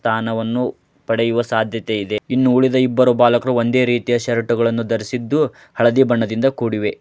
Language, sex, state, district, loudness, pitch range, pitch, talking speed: Kannada, male, Karnataka, Dharwad, -17 LUFS, 115-125 Hz, 120 Hz, 135 wpm